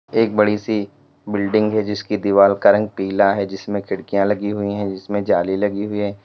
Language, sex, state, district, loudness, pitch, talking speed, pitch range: Hindi, male, Uttar Pradesh, Lalitpur, -19 LUFS, 100 Hz, 200 wpm, 100-105 Hz